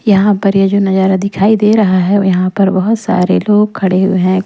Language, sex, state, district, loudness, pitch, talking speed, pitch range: Hindi, female, Bihar, Patna, -11 LUFS, 195 Hz, 230 wpm, 190-205 Hz